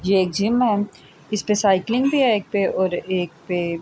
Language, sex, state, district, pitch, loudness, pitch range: Urdu, female, Andhra Pradesh, Anantapur, 200 Hz, -21 LUFS, 185-215 Hz